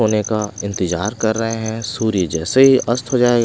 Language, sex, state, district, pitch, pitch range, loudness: Hindi, male, Punjab, Pathankot, 110 Hz, 100-120 Hz, -17 LUFS